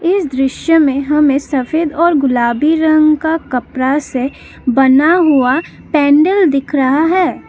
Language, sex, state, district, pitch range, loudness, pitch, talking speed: Hindi, female, Assam, Kamrup Metropolitan, 270-320 Hz, -13 LUFS, 295 Hz, 135 wpm